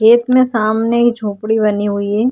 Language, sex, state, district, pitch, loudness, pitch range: Hindi, female, Maharashtra, Chandrapur, 220 Hz, -14 LUFS, 210-235 Hz